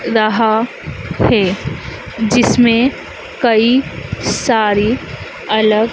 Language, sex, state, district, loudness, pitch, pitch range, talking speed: Hindi, female, Madhya Pradesh, Dhar, -14 LUFS, 225 Hz, 220-240 Hz, 60 wpm